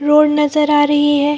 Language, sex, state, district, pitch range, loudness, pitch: Hindi, female, Chhattisgarh, Bilaspur, 290-300 Hz, -13 LUFS, 295 Hz